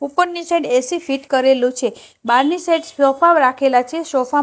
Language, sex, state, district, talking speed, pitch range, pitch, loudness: Gujarati, female, Gujarat, Gandhinagar, 165 wpm, 255-335 Hz, 275 Hz, -16 LUFS